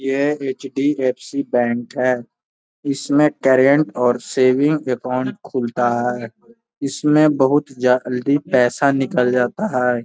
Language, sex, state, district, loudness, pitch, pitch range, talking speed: Hindi, male, Bihar, Gaya, -18 LUFS, 130 Hz, 125-140 Hz, 105 wpm